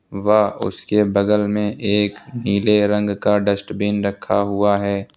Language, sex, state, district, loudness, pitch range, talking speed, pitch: Hindi, male, Uttar Pradesh, Lucknow, -18 LUFS, 100-105 Hz, 150 wpm, 105 Hz